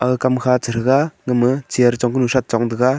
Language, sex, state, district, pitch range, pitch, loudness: Wancho, male, Arunachal Pradesh, Longding, 120-130 Hz, 125 Hz, -17 LUFS